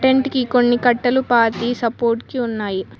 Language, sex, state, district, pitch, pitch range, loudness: Telugu, female, Telangana, Mahabubabad, 240 Hz, 230-250 Hz, -18 LUFS